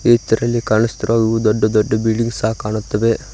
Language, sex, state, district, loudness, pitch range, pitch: Kannada, male, Karnataka, Koppal, -17 LUFS, 110-115 Hz, 110 Hz